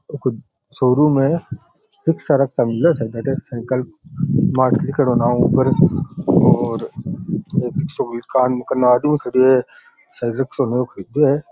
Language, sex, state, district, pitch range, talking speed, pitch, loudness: Rajasthani, male, Rajasthan, Churu, 120-145 Hz, 50 wpm, 130 Hz, -18 LUFS